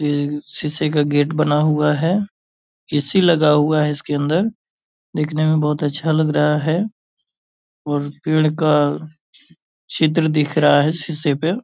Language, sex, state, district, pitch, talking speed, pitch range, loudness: Hindi, male, Bihar, Purnia, 150 Hz, 150 wpm, 145-155 Hz, -18 LUFS